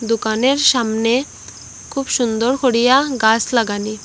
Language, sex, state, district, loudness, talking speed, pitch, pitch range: Bengali, female, Assam, Hailakandi, -16 LUFS, 105 wpm, 235 Hz, 225-260 Hz